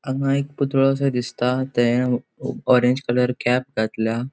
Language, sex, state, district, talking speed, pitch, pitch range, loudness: Konkani, male, Goa, North and South Goa, 140 wpm, 125 Hz, 120-135 Hz, -21 LUFS